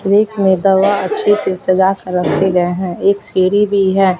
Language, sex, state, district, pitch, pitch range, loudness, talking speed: Hindi, female, Bihar, West Champaran, 190 Hz, 185-200 Hz, -14 LUFS, 215 wpm